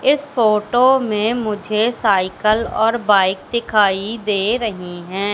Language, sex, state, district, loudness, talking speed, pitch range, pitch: Hindi, female, Madhya Pradesh, Katni, -17 LUFS, 125 wpm, 200-235 Hz, 215 Hz